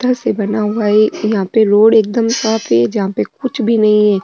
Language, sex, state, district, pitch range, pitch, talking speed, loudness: Rajasthani, female, Rajasthan, Nagaur, 205-225 Hz, 215 Hz, 240 wpm, -13 LUFS